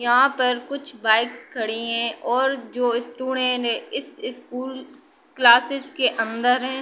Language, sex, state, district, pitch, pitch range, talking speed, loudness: Hindi, female, Uttar Pradesh, Budaun, 250 Hz, 240-265 Hz, 130 wpm, -22 LUFS